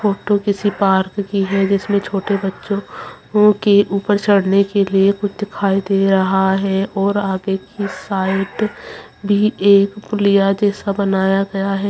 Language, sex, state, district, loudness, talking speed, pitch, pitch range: Hindi, female, Bihar, Purnia, -16 LUFS, 150 wpm, 200 Hz, 195-205 Hz